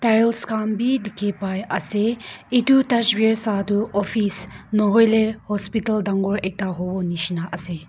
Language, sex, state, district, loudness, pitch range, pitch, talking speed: Nagamese, female, Nagaland, Kohima, -20 LUFS, 195-220 Hz, 210 Hz, 130 wpm